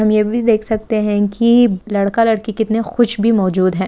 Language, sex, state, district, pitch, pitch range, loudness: Hindi, female, Jharkhand, Sahebganj, 220 Hz, 205-230 Hz, -15 LUFS